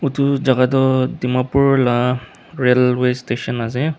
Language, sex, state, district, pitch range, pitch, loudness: Nagamese, male, Nagaland, Dimapur, 125-140 Hz, 130 Hz, -17 LUFS